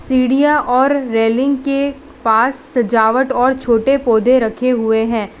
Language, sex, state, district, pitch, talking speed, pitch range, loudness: Hindi, female, Gujarat, Valsad, 255 Hz, 135 wpm, 225-275 Hz, -14 LUFS